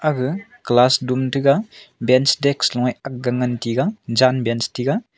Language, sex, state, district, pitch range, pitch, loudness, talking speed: Wancho, male, Arunachal Pradesh, Longding, 125-155 Hz, 130 Hz, -19 LUFS, 150 wpm